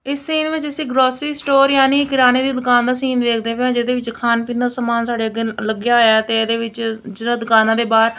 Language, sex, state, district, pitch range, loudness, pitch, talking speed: Punjabi, female, Punjab, Kapurthala, 230-265 Hz, -16 LUFS, 240 Hz, 225 wpm